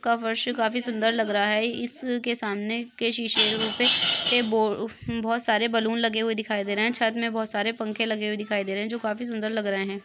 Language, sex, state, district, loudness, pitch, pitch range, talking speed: Hindi, female, Jharkhand, Sahebganj, -24 LUFS, 225 Hz, 215-235 Hz, 240 wpm